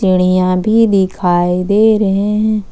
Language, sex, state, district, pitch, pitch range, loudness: Hindi, female, Jharkhand, Ranchi, 195 Hz, 185-210 Hz, -12 LUFS